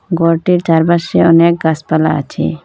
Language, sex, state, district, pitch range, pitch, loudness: Bengali, female, Assam, Hailakandi, 160-170 Hz, 165 Hz, -12 LUFS